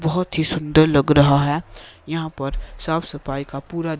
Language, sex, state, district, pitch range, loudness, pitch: Hindi, male, Himachal Pradesh, Shimla, 140-160 Hz, -20 LUFS, 155 Hz